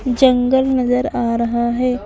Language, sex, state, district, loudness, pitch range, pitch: Hindi, female, Maharashtra, Mumbai Suburban, -16 LUFS, 235-260 Hz, 250 Hz